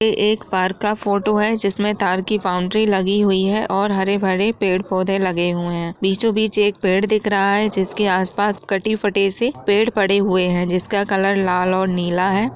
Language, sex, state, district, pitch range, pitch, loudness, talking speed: Hindi, female, Bihar, Jahanabad, 185-210 Hz, 200 Hz, -18 LUFS, 185 wpm